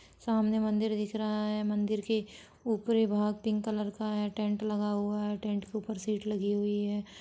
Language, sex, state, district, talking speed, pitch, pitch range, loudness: Hindi, female, Jharkhand, Sahebganj, 190 wpm, 210 Hz, 205-215 Hz, -32 LUFS